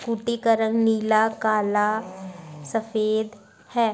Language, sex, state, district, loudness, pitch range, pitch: Hindi, female, Bihar, Darbhanga, -23 LUFS, 210-225 Hz, 220 Hz